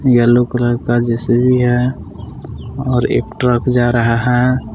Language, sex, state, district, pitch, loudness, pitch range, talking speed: Hindi, male, Jharkhand, Palamu, 120 Hz, -14 LUFS, 120-125 Hz, 140 wpm